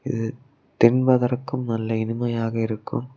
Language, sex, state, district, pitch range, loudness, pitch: Tamil, male, Tamil Nadu, Kanyakumari, 115-130 Hz, -23 LUFS, 120 Hz